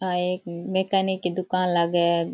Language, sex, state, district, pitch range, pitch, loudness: Rajasthani, female, Rajasthan, Churu, 170-185 Hz, 180 Hz, -24 LUFS